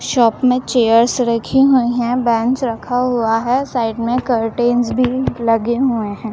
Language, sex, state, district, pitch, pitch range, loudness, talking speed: Hindi, female, Chhattisgarh, Raipur, 240 Hz, 230-250 Hz, -16 LUFS, 160 wpm